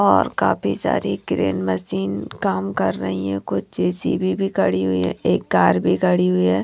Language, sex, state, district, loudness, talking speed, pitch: Hindi, female, Punjab, Kapurthala, -20 LUFS, 190 wpm, 95 Hz